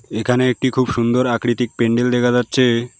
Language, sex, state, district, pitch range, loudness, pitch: Bengali, male, West Bengal, Alipurduar, 120-125 Hz, -17 LUFS, 120 Hz